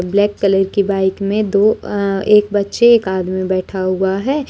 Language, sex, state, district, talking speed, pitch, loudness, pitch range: Hindi, female, Jharkhand, Deoghar, 185 wpm, 200 Hz, -15 LUFS, 190-210 Hz